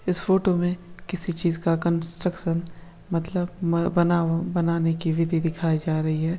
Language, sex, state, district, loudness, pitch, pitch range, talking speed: Hindi, male, Bihar, Madhepura, -24 LUFS, 170 Hz, 165-175 Hz, 160 wpm